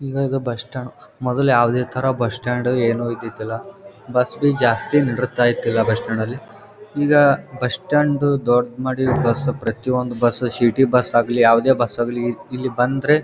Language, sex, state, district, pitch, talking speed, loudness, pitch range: Kannada, male, Karnataka, Gulbarga, 125 Hz, 150 wpm, -19 LUFS, 120-135 Hz